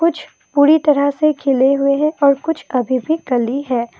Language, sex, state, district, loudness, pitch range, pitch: Hindi, female, Assam, Kamrup Metropolitan, -16 LUFS, 260-305 Hz, 285 Hz